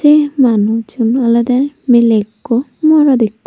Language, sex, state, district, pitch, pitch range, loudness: Chakma, female, Tripura, Unakoti, 245 Hz, 230-280 Hz, -12 LUFS